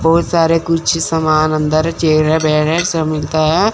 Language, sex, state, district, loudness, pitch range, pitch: Hindi, male, Chandigarh, Chandigarh, -14 LUFS, 155-165 Hz, 160 Hz